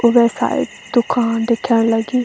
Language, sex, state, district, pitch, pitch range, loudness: Garhwali, female, Uttarakhand, Tehri Garhwal, 235 Hz, 230-245 Hz, -17 LUFS